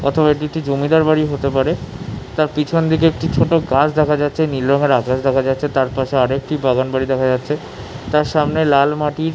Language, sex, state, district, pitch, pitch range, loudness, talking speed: Bengali, male, West Bengal, Jhargram, 145 Hz, 135-155 Hz, -17 LUFS, 205 wpm